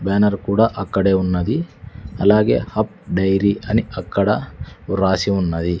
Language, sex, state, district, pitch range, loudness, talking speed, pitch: Telugu, male, Andhra Pradesh, Sri Satya Sai, 95-105 Hz, -18 LUFS, 115 wpm, 100 Hz